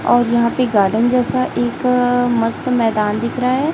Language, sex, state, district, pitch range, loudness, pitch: Hindi, female, Chhattisgarh, Raipur, 230-250 Hz, -16 LUFS, 245 Hz